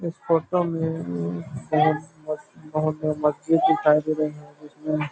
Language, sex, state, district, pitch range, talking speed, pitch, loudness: Hindi, male, Chhattisgarh, Rajnandgaon, 150-165 Hz, 140 wpm, 155 Hz, -24 LUFS